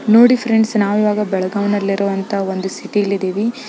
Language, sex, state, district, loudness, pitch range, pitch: Kannada, female, Karnataka, Belgaum, -16 LUFS, 195-220 Hz, 205 Hz